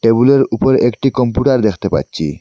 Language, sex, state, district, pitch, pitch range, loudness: Bengali, male, Assam, Hailakandi, 125 Hz, 115-135 Hz, -14 LUFS